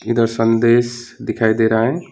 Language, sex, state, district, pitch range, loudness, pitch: Hindi, male, West Bengal, Alipurduar, 115-120 Hz, -16 LUFS, 115 Hz